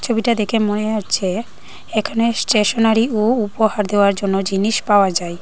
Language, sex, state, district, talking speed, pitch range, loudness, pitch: Bengali, female, Tripura, Dhalai, 145 wpm, 200-225 Hz, -17 LUFS, 215 Hz